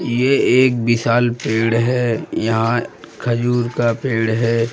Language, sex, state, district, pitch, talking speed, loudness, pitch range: Hindi, male, Bihar, Jamui, 120 Hz, 125 wpm, -17 LUFS, 115-120 Hz